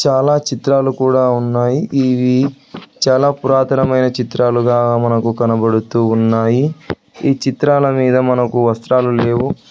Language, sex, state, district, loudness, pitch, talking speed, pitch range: Telugu, male, Telangana, Hyderabad, -14 LUFS, 130 Hz, 105 wpm, 120-135 Hz